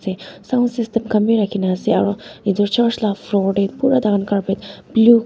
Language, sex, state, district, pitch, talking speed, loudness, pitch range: Nagamese, female, Nagaland, Dimapur, 210 Hz, 215 wpm, -18 LUFS, 195-230 Hz